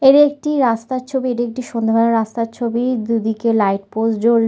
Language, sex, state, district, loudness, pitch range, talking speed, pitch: Bengali, female, West Bengal, North 24 Parganas, -18 LUFS, 225-255 Hz, 175 wpm, 235 Hz